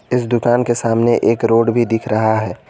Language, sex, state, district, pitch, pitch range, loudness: Hindi, male, Jharkhand, Garhwa, 115 Hz, 115-120 Hz, -15 LUFS